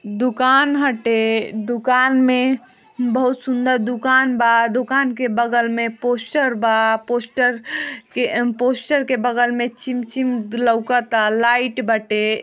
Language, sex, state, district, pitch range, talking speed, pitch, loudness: Hindi, female, Uttar Pradesh, Ghazipur, 230-255 Hz, 120 wpm, 245 Hz, -18 LUFS